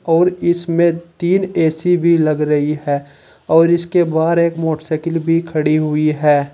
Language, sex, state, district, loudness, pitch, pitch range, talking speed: Hindi, male, Uttar Pradesh, Saharanpur, -16 LUFS, 165 Hz, 155-170 Hz, 155 wpm